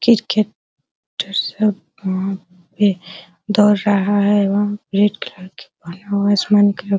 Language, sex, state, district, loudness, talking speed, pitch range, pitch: Hindi, female, Bihar, Araria, -17 LUFS, 165 wpm, 190-205 Hz, 200 Hz